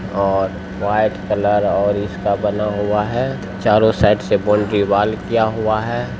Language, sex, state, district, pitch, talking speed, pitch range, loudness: Hindi, male, Bihar, Begusarai, 105 Hz, 155 wpm, 100-110 Hz, -17 LUFS